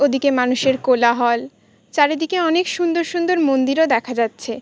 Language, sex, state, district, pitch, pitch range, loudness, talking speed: Bengali, female, West Bengal, Kolkata, 275 Hz, 250-330 Hz, -18 LUFS, 130 wpm